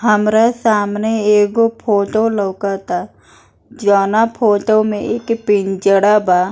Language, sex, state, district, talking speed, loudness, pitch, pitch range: Bhojpuri, female, Bihar, East Champaran, 110 wpm, -15 LUFS, 210 Hz, 200-225 Hz